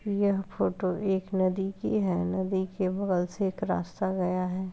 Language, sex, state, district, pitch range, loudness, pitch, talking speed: Hindi, female, Bihar, Saharsa, 185-195 Hz, -29 LUFS, 190 Hz, 175 wpm